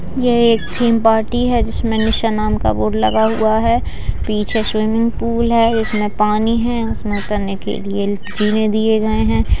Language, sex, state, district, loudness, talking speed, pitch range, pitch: Hindi, female, Bihar, Jamui, -16 LUFS, 175 wpm, 205-230 Hz, 220 Hz